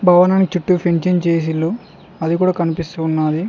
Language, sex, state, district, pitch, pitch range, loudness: Telugu, male, Telangana, Mahabubabad, 175 Hz, 165-180 Hz, -17 LUFS